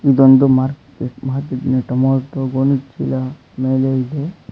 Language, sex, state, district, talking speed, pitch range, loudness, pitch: Kannada, male, Karnataka, Bangalore, 95 wpm, 130-135 Hz, -17 LUFS, 135 Hz